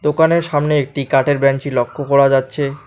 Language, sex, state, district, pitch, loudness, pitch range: Bengali, male, West Bengal, Alipurduar, 140 Hz, -15 LUFS, 135-150 Hz